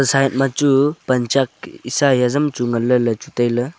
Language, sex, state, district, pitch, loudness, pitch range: Wancho, male, Arunachal Pradesh, Longding, 130 Hz, -17 LUFS, 120-140 Hz